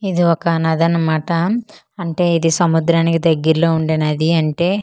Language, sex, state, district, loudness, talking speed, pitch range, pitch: Telugu, female, Andhra Pradesh, Manyam, -16 LUFS, 125 wpm, 160-170 Hz, 165 Hz